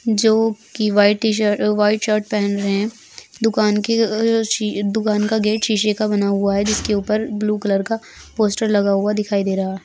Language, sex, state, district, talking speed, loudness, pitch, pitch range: Bhojpuri, female, Bihar, Saran, 200 wpm, -18 LUFS, 210 Hz, 205-220 Hz